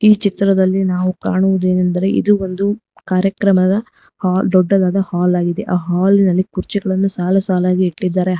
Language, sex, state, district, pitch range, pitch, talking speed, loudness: Kannada, female, Karnataka, Bangalore, 185-195 Hz, 190 Hz, 115 wpm, -15 LUFS